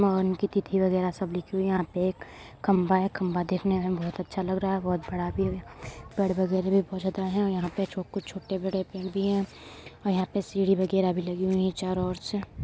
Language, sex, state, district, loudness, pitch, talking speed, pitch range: Hindi, female, Uttar Pradesh, Jyotiba Phule Nagar, -28 LUFS, 190 Hz, 245 wpm, 180-195 Hz